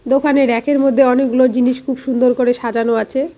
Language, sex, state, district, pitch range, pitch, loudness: Bengali, female, West Bengal, Cooch Behar, 245-270 Hz, 255 Hz, -15 LUFS